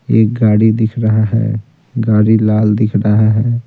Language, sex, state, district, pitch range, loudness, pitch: Hindi, male, Bihar, Patna, 110-115 Hz, -13 LUFS, 110 Hz